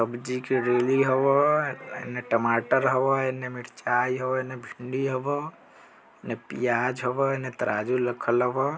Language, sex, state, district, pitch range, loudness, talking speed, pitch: Bajjika, male, Bihar, Vaishali, 125-135 Hz, -26 LUFS, 165 wpm, 130 Hz